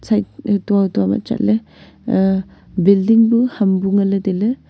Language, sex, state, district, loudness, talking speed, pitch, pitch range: Wancho, female, Arunachal Pradesh, Longding, -16 LUFS, 155 wpm, 200 Hz, 190-215 Hz